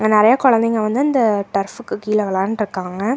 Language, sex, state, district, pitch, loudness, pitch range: Tamil, female, Karnataka, Bangalore, 215 Hz, -17 LUFS, 200-230 Hz